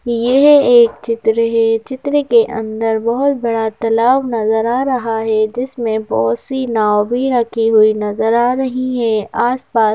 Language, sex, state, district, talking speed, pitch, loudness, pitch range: Hindi, female, Madhya Pradesh, Bhopal, 155 wpm, 230 Hz, -14 LUFS, 220-250 Hz